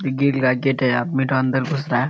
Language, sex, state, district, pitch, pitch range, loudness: Hindi, male, Bihar, Kishanganj, 135 Hz, 130-135 Hz, -20 LUFS